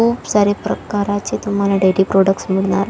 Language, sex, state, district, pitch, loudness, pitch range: Marathi, female, Maharashtra, Chandrapur, 200 Hz, -16 LUFS, 195-205 Hz